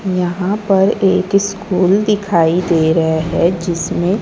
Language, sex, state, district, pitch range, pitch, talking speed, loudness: Hindi, female, Chhattisgarh, Raipur, 170-200 Hz, 185 Hz, 130 wpm, -15 LUFS